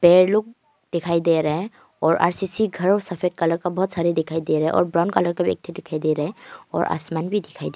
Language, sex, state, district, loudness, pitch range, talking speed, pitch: Hindi, female, Arunachal Pradesh, Longding, -22 LUFS, 165-195 Hz, 265 wpm, 175 Hz